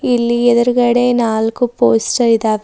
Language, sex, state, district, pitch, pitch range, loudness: Kannada, female, Karnataka, Bidar, 235 Hz, 225-245 Hz, -13 LUFS